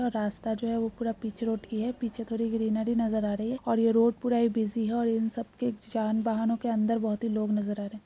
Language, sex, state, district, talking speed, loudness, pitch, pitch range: Hindi, female, Uttar Pradesh, Jalaun, 290 wpm, -29 LUFS, 225 Hz, 220-230 Hz